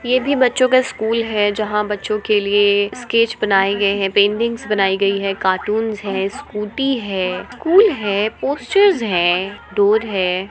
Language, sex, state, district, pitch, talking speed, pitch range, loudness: Hindi, female, Bihar, Muzaffarpur, 210 Hz, 160 wpm, 200-235 Hz, -17 LUFS